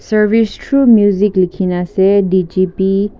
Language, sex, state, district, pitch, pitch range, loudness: Nagamese, female, Nagaland, Kohima, 195 Hz, 185-210 Hz, -13 LUFS